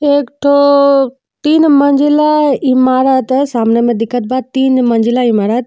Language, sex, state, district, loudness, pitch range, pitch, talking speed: Bhojpuri, female, Uttar Pradesh, Deoria, -11 LUFS, 245-285 Hz, 265 Hz, 140 wpm